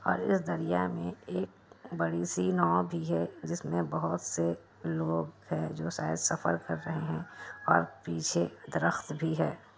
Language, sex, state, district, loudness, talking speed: Hindi, female, Bihar, Kishanganj, -32 LUFS, 155 wpm